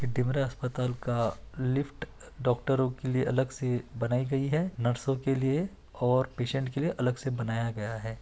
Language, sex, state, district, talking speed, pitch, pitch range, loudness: Hindi, male, Chhattisgarh, Bastar, 180 wpm, 130 Hz, 120-135 Hz, -30 LUFS